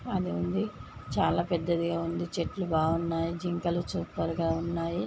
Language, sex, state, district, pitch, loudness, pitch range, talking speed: Telugu, female, Telangana, Nalgonda, 170 Hz, -30 LUFS, 165-170 Hz, 120 wpm